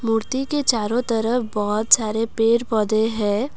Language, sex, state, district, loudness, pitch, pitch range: Hindi, female, Assam, Kamrup Metropolitan, -20 LUFS, 225 Hz, 215-240 Hz